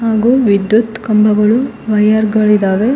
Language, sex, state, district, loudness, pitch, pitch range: Kannada, female, Karnataka, Koppal, -12 LUFS, 215 Hz, 210-225 Hz